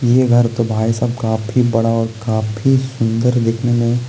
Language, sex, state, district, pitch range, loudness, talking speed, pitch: Hindi, male, Bihar, Gopalganj, 115-120 Hz, -16 LUFS, 190 wpm, 115 Hz